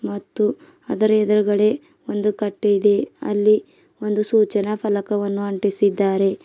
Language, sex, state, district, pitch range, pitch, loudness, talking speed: Kannada, female, Karnataka, Bidar, 205-215 Hz, 210 Hz, -20 LUFS, 100 wpm